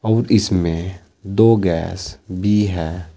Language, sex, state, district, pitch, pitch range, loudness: Hindi, male, Uttar Pradesh, Saharanpur, 95 Hz, 85-105 Hz, -18 LUFS